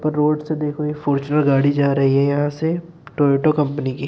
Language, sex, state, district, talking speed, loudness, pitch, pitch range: Hindi, male, Uttar Pradesh, Muzaffarnagar, 235 wpm, -19 LUFS, 145 Hz, 140-150 Hz